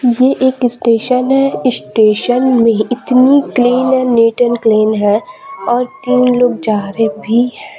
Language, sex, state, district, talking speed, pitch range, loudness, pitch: Hindi, female, Chhattisgarh, Raipur, 155 wpm, 230-255 Hz, -12 LUFS, 245 Hz